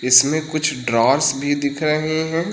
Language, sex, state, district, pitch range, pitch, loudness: Hindi, male, Uttar Pradesh, Lucknow, 135-155 Hz, 150 Hz, -18 LUFS